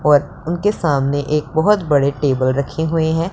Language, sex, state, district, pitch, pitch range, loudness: Hindi, male, Punjab, Pathankot, 150 Hz, 140-165 Hz, -17 LUFS